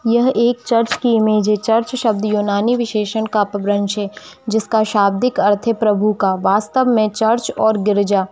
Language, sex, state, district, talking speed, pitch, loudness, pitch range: Hindi, female, Jharkhand, Jamtara, 180 wpm, 215 Hz, -16 LUFS, 205-230 Hz